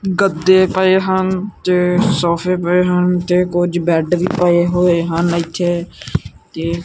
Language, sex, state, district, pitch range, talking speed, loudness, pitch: Punjabi, male, Punjab, Kapurthala, 170-185 Hz, 140 wpm, -15 LUFS, 180 Hz